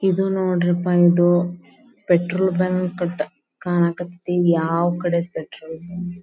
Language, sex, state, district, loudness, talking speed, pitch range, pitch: Kannada, female, Karnataka, Belgaum, -20 LUFS, 115 wpm, 175-180 Hz, 175 Hz